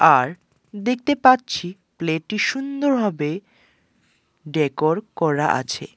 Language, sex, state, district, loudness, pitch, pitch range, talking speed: Bengali, male, West Bengal, Alipurduar, -21 LUFS, 180 Hz, 155-245 Hz, 80 wpm